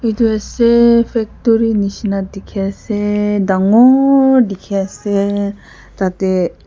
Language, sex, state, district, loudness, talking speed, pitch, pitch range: Nagamese, female, Nagaland, Kohima, -14 LUFS, 90 wpm, 205 Hz, 195-235 Hz